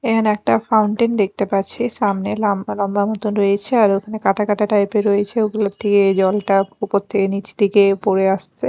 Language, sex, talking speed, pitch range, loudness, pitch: Bengali, female, 165 wpm, 200-215 Hz, -17 LUFS, 205 Hz